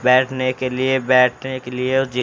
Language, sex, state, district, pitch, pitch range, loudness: Hindi, male, Haryana, Charkhi Dadri, 130 Hz, 125-130 Hz, -18 LUFS